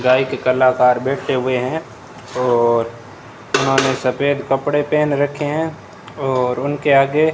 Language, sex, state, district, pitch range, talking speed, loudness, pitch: Hindi, male, Rajasthan, Bikaner, 125-145 Hz, 130 wpm, -17 LUFS, 135 Hz